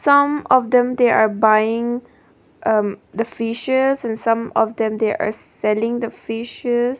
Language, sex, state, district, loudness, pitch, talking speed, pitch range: English, female, Nagaland, Dimapur, -19 LUFS, 230 Hz, 155 wpm, 220-245 Hz